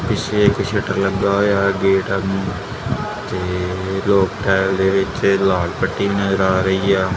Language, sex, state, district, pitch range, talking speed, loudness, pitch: Punjabi, male, Punjab, Kapurthala, 95-100 Hz, 135 wpm, -18 LUFS, 95 Hz